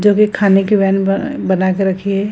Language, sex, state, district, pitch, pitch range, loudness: Hindi, female, Bihar, Gaya, 195 Hz, 195-205 Hz, -14 LUFS